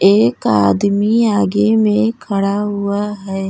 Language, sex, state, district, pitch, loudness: Bhojpuri, female, Uttar Pradesh, Gorakhpur, 195 Hz, -15 LUFS